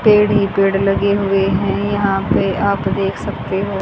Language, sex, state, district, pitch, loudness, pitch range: Hindi, female, Haryana, Charkhi Dadri, 195 Hz, -16 LUFS, 195-200 Hz